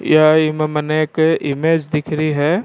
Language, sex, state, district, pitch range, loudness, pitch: Rajasthani, male, Rajasthan, Churu, 150-160 Hz, -16 LUFS, 155 Hz